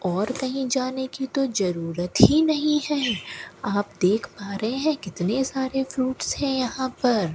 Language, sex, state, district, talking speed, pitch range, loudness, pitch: Hindi, female, Rajasthan, Bikaner, 170 wpm, 200-270 Hz, -24 LUFS, 255 Hz